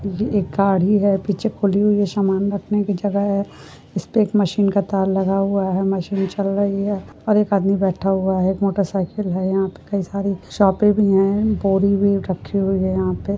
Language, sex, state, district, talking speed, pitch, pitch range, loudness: Hindi, female, Uttar Pradesh, Ghazipur, 220 wpm, 200 Hz, 195-200 Hz, -19 LUFS